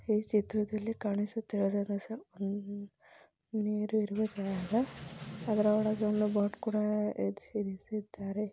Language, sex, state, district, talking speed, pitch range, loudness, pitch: Kannada, female, Karnataka, Belgaum, 100 wpm, 205-215 Hz, -33 LUFS, 210 Hz